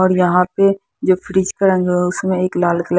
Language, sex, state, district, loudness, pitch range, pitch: Hindi, female, Haryana, Jhajjar, -16 LUFS, 180-190 Hz, 185 Hz